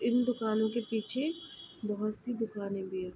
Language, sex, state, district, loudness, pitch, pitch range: Hindi, female, Uttar Pradesh, Ghazipur, -34 LUFS, 220 Hz, 210-245 Hz